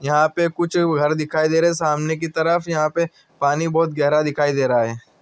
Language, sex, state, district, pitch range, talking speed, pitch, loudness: Hindi, male, Andhra Pradesh, Anantapur, 150-165 Hz, 240 wpm, 155 Hz, -19 LUFS